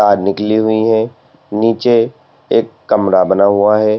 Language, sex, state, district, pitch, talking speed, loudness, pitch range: Hindi, male, Uttar Pradesh, Lalitpur, 110 Hz, 150 wpm, -13 LUFS, 100-115 Hz